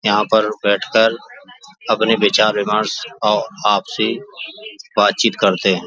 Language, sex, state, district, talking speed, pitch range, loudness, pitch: Hindi, male, Uttar Pradesh, Jalaun, 135 wpm, 105-110 Hz, -16 LUFS, 105 Hz